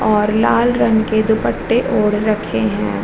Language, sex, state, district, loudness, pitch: Hindi, female, Bihar, Vaishali, -16 LUFS, 210 Hz